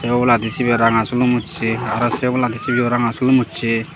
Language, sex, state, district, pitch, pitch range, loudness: Chakma, male, Tripura, Dhalai, 120 Hz, 115-125 Hz, -17 LUFS